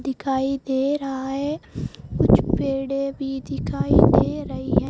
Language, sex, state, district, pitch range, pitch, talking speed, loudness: Hindi, female, Rajasthan, Jaisalmer, 270-275 Hz, 270 Hz, 135 wpm, -22 LUFS